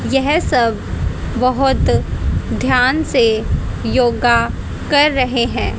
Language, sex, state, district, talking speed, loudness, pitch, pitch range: Hindi, female, Haryana, Charkhi Dadri, 95 wpm, -16 LUFS, 255 Hz, 240-285 Hz